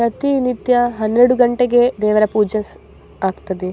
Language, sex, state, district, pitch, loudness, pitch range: Kannada, female, Karnataka, Dakshina Kannada, 235 Hz, -16 LUFS, 210-245 Hz